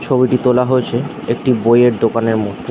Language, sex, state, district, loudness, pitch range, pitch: Bengali, male, West Bengal, Dakshin Dinajpur, -15 LUFS, 115-125 Hz, 125 Hz